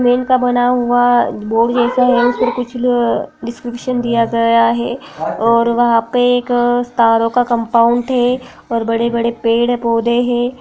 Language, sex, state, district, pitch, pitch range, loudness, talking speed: Hindi, female, Bihar, Jahanabad, 240 Hz, 235-245 Hz, -14 LUFS, 165 wpm